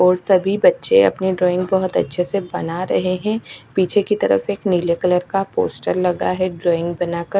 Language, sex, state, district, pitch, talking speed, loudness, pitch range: Hindi, female, Chhattisgarh, Raipur, 185 Hz, 185 wpm, -18 LUFS, 180-195 Hz